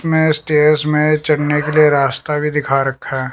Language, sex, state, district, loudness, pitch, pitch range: Hindi, male, Chandigarh, Chandigarh, -15 LUFS, 150 Hz, 140-155 Hz